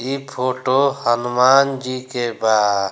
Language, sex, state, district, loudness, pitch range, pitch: Bhojpuri, male, Bihar, Gopalganj, -18 LUFS, 120-135 Hz, 130 Hz